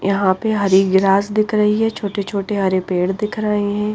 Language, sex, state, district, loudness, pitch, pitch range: Hindi, female, Himachal Pradesh, Shimla, -17 LUFS, 200 Hz, 195-210 Hz